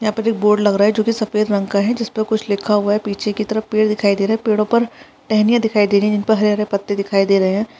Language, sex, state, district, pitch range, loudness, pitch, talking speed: Hindi, female, Bihar, Saharsa, 205-220 Hz, -17 LUFS, 210 Hz, 305 wpm